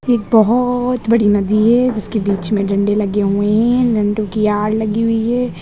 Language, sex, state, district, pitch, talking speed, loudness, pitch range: Hindi, female, Bihar, Muzaffarpur, 215 Hz, 190 wpm, -15 LUFS, 205-235 Hz